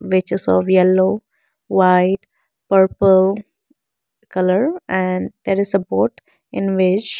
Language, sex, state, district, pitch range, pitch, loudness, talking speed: English, female, Arunachal Pradesh, Lower Dibang Valley, 185-200 Hz, 190 Hz, -17 LUFS, 125 wpm